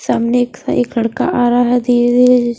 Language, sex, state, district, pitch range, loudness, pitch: Hindi, female, Haryana, Charkhi Dadri, 240-245 Hz, -14 LUFS, 245 Hz